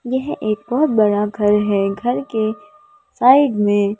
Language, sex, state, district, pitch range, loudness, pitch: Hindi, female, Madhya Pradesh, Bhopal, 205-265 Hz, -17 LUFS, 220 Hz